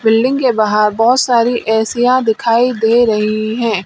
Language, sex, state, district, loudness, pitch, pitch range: Hindi, female, Uttar Pradesh, Lalitpur, -13 LUFS, 230 Hz, 220-245 Hz